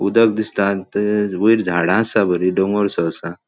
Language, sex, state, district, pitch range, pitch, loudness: Konkani, male, Goa, North and South Goa, 95-110 Hz, 100 Hz, -17 LUFS